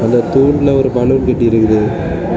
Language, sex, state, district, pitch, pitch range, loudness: Tamil, male, Tamil Nadu, Kanyakumari, 125 Hz, 115-135 Hz, -12 LUFS